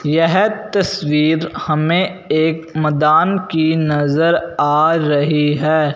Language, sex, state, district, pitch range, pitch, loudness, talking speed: Hindi, male, Punjab, Fazilka, 150-170 Hz, 160 Hz, -15 LUFS, 100 wpm